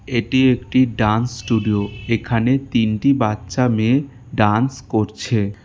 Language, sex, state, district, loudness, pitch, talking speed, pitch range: Bengali, male, West Bengal, Alipurduar, -18 LUFS, 115 Hz, 105 wpm, 105-125 Hz